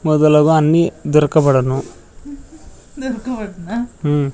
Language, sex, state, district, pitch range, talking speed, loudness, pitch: Telugu, male, Andhra Pradesh, Sri Satya Sai, 150-230 Hz, 70 wpm, -16 LUFS, 155 Hz